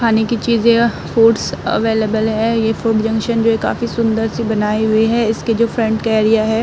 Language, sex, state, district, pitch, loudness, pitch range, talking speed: Hindi, female, Uttar Pradesh, Muzaffarnagar, 225 Hz, -15 LUFS, 220-230 Hz, 210 wpm